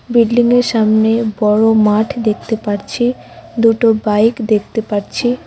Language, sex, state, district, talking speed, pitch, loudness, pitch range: Bengali, female, West Bengal, Cooch Behar, 120 wpm, 225 Hz, -14 LUFS, 215-235 Hz